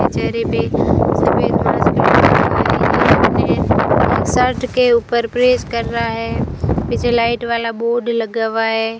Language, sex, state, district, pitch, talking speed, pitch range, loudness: Hindi, female, Rajasthan, Bikaner, 230 Hz, 120 wpm, 225-235 Hz, -15 LUFS